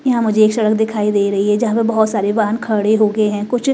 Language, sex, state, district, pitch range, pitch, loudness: Hindi, female, Bihar, West Champaran, 210-225 Hz, 215 Hz, -15 LUFS